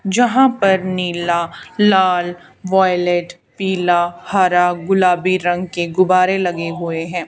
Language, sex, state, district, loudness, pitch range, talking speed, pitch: Hindi, female, Haryana, Charkhi Dadri, -16 LUFS, 175-190 Hz, 115 wpm, 180 Hz